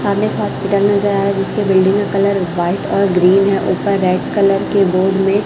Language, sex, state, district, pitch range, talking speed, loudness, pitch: Hindi, male, Chhattisgarh, Raipur, 190-200 Hz, 230 wpm, -14 LUFS, 195 Hz